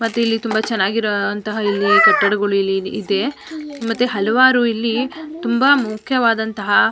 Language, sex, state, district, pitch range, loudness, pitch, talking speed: Kannada, female, Karnataka, Mysore, 205-250 Hz, -17 LUFS, 225 Hz, 120 wpm